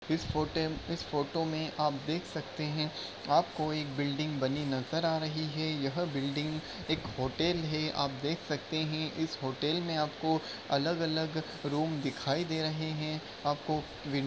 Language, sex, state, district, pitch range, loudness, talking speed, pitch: Hindi, male, Uttar Pradesh, Budaun, 145-160 Hz, -33 LUFS, 165 wpm, 155 Hz